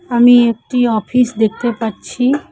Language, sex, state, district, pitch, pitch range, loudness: Bengali, female, West Bengal, Cooch Behar, 240 Hz, 225-250 Hz, -14 LUFS